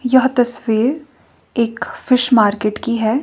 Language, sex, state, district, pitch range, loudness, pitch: Hindi, female, Himachal Pradesh, Shimla, 220-260 Hz, -17 LUFS, 235 Hz